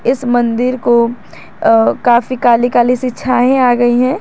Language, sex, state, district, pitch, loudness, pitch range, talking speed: Hindi, female, Jharkhand, Garhwa, 245 Hz, -12 LUFS, 240-255 Hz, 170 wpm